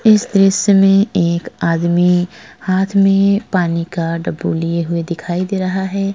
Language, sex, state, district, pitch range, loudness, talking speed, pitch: Hindi, female, Uttar Pradesh, Jalaun, 170-195 Hz, -15 LUFS, 155 wpm, 185 Hz